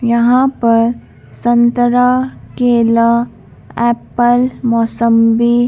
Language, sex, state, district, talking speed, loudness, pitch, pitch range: Hindi, female, Madhya Pradesh, Bhopal, 65 wpm, -13 LUFS, 235 Hz, 235-245 Hz